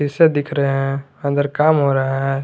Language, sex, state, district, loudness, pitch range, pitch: Hindi, male, Jharkhand, Garhwa, -18 LUFS, 135-145 Hz, 140 Hz